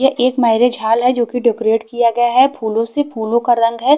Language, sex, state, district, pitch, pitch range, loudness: Hindi, female, Haryana, Charkhi Dadri, 240 Hz, 230-250 Hz, -15 LUFS